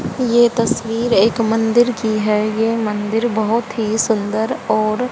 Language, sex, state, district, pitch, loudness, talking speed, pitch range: Hindi, female, Haryana, Charkhi Dadri, 225 Hz, -17 LUFS, 150 wpm, 215-235 Hz